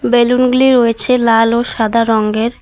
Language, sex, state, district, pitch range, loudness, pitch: Bengali, female, West Bengal, Alipurduar, 225-245 Hz, -12 LUFS, 230 Hz